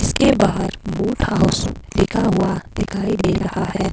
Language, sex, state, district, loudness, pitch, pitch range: Hindi, female, Himachal Pradesh, Shimla, -19 LUFS, 195 Hz, 190-205 Hz